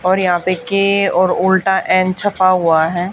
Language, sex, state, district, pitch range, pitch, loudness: Hindi, female, Haryana, Charkhi Dadri, 180-190 Hz, 185 Hz, -14 LUFS